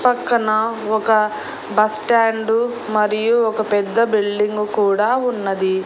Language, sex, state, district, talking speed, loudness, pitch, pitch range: Telugu, female, Andhra Pradesh, Annamaya, 90 wpm, -18 LUFS, 215 Hz, 210-230 Hz